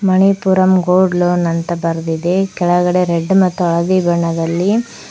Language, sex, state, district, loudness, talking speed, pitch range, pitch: Kannada, female, Karnataka, Koppal, -14 LUFS, 115 wpm, 170-185 Hz, 180 Hz